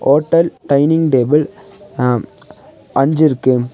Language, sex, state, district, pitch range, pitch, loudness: Tamil, male, Tamil Nadu, Nilgiris, 125-155 Hz, 140 Hz, -14 LUFS